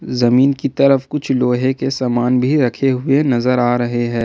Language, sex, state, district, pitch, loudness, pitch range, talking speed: Hindi, male, Jharkhand, Ranchi, 125 Hz, -16 LUFS, 120-135 Hz, 200 wpm